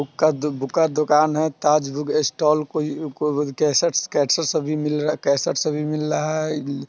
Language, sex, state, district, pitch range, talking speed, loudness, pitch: Hindi, male, Bihar, Sitamarhi, 145-155 Hz, 175 wpm, -21 LUFS, 150 Hz